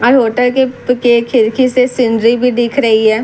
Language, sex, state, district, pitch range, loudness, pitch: Hindi, female, Bihar, Katihar, 230-255 Hz, -12 LUFS, 245 Hz